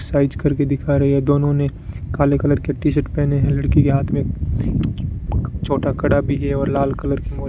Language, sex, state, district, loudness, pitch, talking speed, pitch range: Hindi, male, Rajasthan, Bikaner, -19 LUFS, 140 Hz, 215 wpm, 140-145 Hz